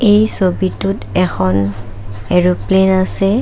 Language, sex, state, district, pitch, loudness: Assamese, female, Assam, Kamrup Metropolitan, 180 Hz, -14 LUFS